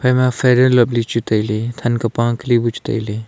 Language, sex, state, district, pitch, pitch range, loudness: Wancho, male, Arunachal Pradesh, Longding, 120 Hz, 115-125 Hz, -16 LUFS